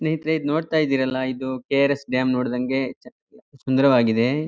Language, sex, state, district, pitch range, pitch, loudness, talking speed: Kannada, male, Karnataka, Chamarajanagar, 130-145 Hz, 135 Hz, -22 LUFS, 145 wpm